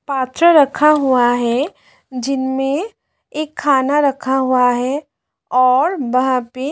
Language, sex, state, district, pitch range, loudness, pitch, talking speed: Hindi, female, Delhi, New Delhi, 255-290 Hz, -16 LUFS, 265 Hz, 115 wpm